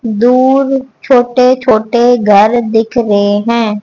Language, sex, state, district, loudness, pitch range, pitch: Hindi, female, Haryana, Charkhi Dadri, -10 LUFS, 220-255 Hz, 240 Hz